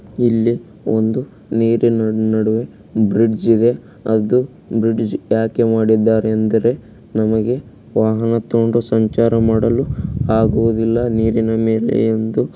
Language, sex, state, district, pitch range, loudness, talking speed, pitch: Kannada, male, Karnataka, Mysore, 110-115 Hz, -17 LUFS, 95 wpm, 115 Hz